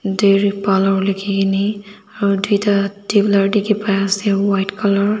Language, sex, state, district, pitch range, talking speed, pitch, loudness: Nagamese, female, Nagaland, Dimapur, 195-205 Hz, 150 wpm, 200 Hz, -16 LUFS